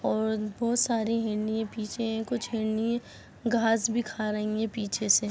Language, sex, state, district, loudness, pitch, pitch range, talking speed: Hindi, female, Jharkhand, Jamtara, -29 LUFS, 220 Hz, 215-230 Hz, 160 wpm